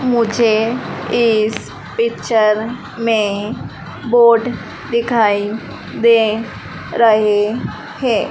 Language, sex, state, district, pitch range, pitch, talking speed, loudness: Hindi, female, Madhya Pradesh, Dhar, 215-235 Hz, 225 Hz, 65 wpm, -16 LUFS